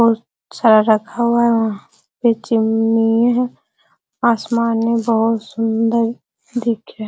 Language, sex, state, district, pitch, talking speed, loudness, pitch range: Hindi, female, Bihar, Araria, 230 Hz, 135 wpm, -17 LUFS, 225-235 Hz